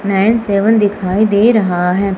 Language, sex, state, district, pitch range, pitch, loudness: Hindi, female, Madhya Pradesh, Umaria, 195-215 Hz, 200 Hz, -13 LUFS